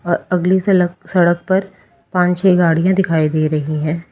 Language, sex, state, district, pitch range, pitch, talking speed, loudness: Hindi, female, Uttar Pradesh, Lalitpur, 165-185 Hz, 175 Hz, 175 wpm, -16 LUFS